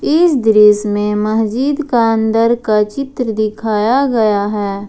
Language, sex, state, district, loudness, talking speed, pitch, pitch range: Hindi, female, Jharkhand, Ranchi, -14 LUFS, 135 wpm, 220 Hz, 210-245 Hz